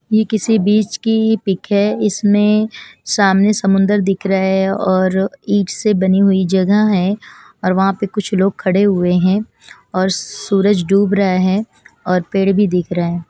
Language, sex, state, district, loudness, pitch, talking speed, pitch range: Hindi, female, Chandigarh, Chandigarh, -15 LUFS, 195 Hz, 170 wpm, 190-210 Hz